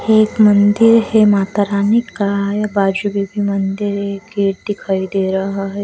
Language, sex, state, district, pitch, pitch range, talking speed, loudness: Hindi, female, Bihar, West Champaran, 200 Hz, 195-210 Hz, 145 wpm, -15 LUFS